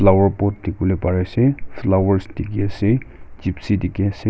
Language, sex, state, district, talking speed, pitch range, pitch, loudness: Nagamese, male, Nagaland, Kohima, 165 wpm, 95-100 Hz, 100 Hz, -20 LUFS